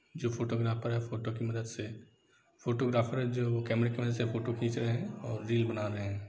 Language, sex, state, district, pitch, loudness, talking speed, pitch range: Hindi, male, Bihar, Sitamarhi, 115 Hz, -34 LUFS, 220 wpm, 115-120 Hz